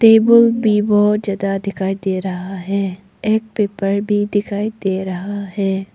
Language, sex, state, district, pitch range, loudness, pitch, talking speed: Hindi, female, Arunachal Pradesh, Papum Pare, 195-210 Hz, -17 LUFS, 200 Hz, 150 wpm